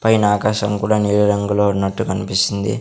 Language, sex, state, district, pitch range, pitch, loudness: Telugu, male, Andhra Pradesh, Sri Satya Sai, 100-105 Hz, 105 Hz, -17 LUFS